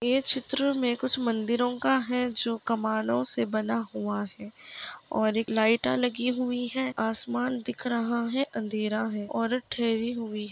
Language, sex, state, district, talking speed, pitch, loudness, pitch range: Hindi, female, Chhattisgarh, Raigarh, 160 wpm, 235 Hz, -28 LUFS, 215-250 Hz